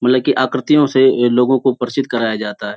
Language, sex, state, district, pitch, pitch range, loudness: Hindi, male, Uttar Pradesh, Hamirpur, 125 Hz, 120-130 Hz, -15 LUFS